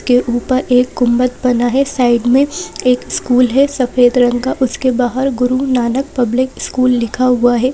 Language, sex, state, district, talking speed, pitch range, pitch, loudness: Hindi, female, Madhya Pradesh, Bhopal, 185 wpm, 245-260 Hz, 250 Hz, -14 LUFS